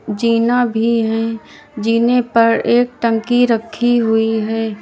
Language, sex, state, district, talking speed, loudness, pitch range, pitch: Hindi, female, Uttar Pradesh, Lalitpur, 125 wpm, -15 LUFS, 225-240 Hz, 230 Hz